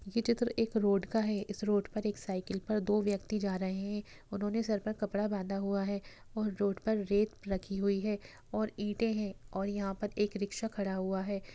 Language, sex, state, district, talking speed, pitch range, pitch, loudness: Hindi, female, Bihar, Sitamarhi, 225 wpm, 195-215 Hz, 205 Hz, -34 LUFS